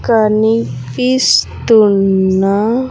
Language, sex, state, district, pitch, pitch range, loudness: Telugu, female, Andhra Pradesh, Sri Satya Sai, 215 Hz, 190-230 Hz, -12 LUFS